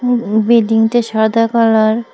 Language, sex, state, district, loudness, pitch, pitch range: Bengali, female, Tripura, West Tripura, -13 LUFS, 225 Hz, 220-235 Hz